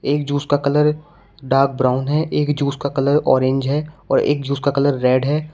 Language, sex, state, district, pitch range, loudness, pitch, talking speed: Hindi, male, Uttar Pradesh, Shamli, 135-150 Hz, -18 LUFS, 140 Hz, 215 wpm